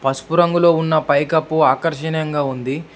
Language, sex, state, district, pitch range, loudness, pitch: Telugu, male, Telangana, Hyderabad, 145-165 Hz, -17 LUFS, 155 Hz